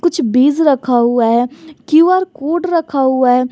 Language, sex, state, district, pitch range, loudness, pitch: Hindi, male, Jharkhand, Garhwa, 250-325 Hz, -13 LUFS, 285 Hz